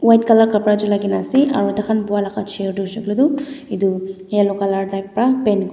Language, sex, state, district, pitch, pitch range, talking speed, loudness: Nagamese, female, Nagaland, Dimapur, 205 Hz, 195-225 Hz, 220 wpm, -18 LUFS